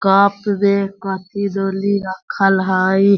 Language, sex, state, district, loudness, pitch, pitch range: Hindi, male, Bihar, Sitamarhi, -17 LUFS, 195 Hz, 190-200 Hz